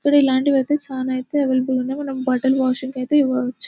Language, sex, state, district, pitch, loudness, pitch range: Telugu, female, Telangana, Nalgonda, 265 Hz, -20 LUFS, 255-280 Hz